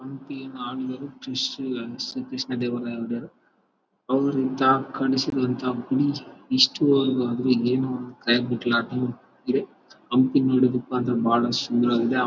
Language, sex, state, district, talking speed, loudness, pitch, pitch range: Kannada, male, Karnataka, Bellary, 95 wpm, -24 LUFS, 130 Hz, 120-135 Hz